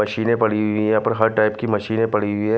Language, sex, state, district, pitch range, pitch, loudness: Hindi, male, Himachal Pradesh, Shimla, 105-110 Hz, 110 Hz, -19 LUFS